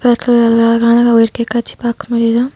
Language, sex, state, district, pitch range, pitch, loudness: Tamil, female, Tamil Nadu, Nilgiris, 230-240 Hz, 235 Hz, -12 LUFS